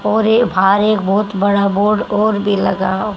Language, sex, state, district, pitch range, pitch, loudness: Hindi, female, Haryana, Charkhi Dadri, 195-215 Hz, 200 Hz, -14 LUFS